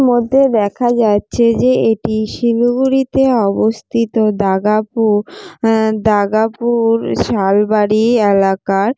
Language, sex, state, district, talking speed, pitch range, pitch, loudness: Bengali, female, West Bengal, Jalpaiguri, 100 wpm, 210-235 Hz, 220 Hz, -14 LUFS